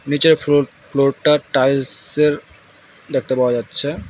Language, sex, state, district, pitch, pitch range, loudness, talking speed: Bengali, male, West Bengal, Alipurduar, 145 Hz, 130-150 Hz, -17 LUFS, 115 wpm